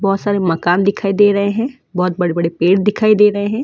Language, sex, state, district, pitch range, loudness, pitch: Hindi, female, Delhi, New Delhi, 180-210 Hz, -15 LUFS, 200 Hz